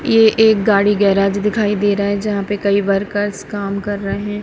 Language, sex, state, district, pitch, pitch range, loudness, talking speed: Hindi, female, Punjab, Kapurthala, 205 Hz, 200-210 Hz, -16 LUFS, 215 wpm